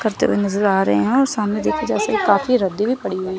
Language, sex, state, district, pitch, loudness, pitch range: Hindi, female, Chandigarh, Chandigarh, 205 Hz, -18 LUFS, 190-220 Hz